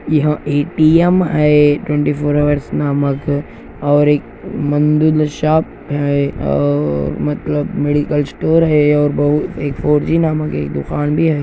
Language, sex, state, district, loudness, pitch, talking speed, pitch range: Hindi, male, Andhra Pradesh, Anantapur, -15 LUFS, 145 Hz, 130 wpm, 145-150 Hz